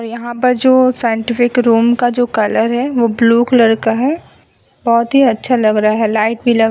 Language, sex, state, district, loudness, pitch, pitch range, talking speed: Hindi, female, Uttar Pradesh, Budaun, -13 LUFS, 235 Hz, 225-245 Hz, 205 wpm